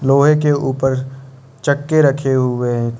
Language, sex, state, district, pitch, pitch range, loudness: Hindi, male, Arunachal Pradesh, Lower Dibang Valley, 135 Hz, 130-145 Hz, -16 LUFS